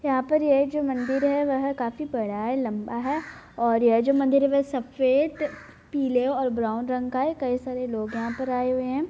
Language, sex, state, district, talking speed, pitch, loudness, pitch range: Hindi, female, Bihar, Bhagalpur, 220 wpm, 260 Hz, -25 LUFS, 245-280 Hz